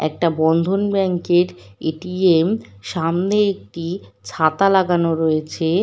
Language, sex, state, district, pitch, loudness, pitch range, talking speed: Bengali, female, West Bengal, Dakshin Dinajpur, 170 Hz, -19 LUFS, 160-185 Hz, 115 wpm